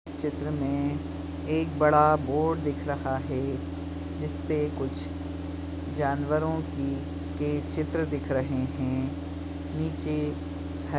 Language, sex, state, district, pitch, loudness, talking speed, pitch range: Hindi, male, Chhattisgarh, Bastar, 95 Hz, -29 LUFS, 110 wpm, 95-140 Hz